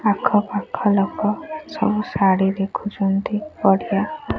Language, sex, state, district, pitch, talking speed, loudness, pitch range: Odia, female, Odisha, Khordha, 205 Hz, 95 wpm, -20 LUFS, 195-235 Hz